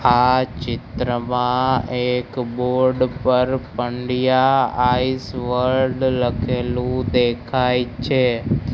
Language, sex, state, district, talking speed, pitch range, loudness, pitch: Gujarati, male, Gujarat, Gandhinagar, 75 wpm, 125-130 Hz, -19 LUFS, 125 Hz